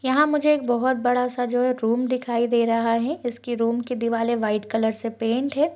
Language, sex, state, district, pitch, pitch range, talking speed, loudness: Hindi, female, Chhattisgarh, Balrampur, 245 Hz, 230-255 Hz, 220 wpm, -23 LUFS